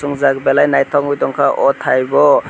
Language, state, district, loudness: Kokborok, Tripura, West Tripura, -14 LUFS